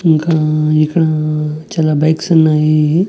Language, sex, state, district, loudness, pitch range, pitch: Telugu, male, Andhra Pradesh, Annamaya, -13 LUFS, 155-160 Hz, 155 Hz